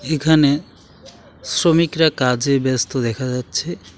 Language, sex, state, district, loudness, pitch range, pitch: Bengali, male, West Bengal, Alipurduar, -18 LUFS, 125-155 Hz, 130 Hz